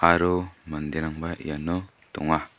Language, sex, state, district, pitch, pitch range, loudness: Garo, male, Meghalaya, West Garo Hills, 85 Hz, 80-90 Hz, -27 LUFS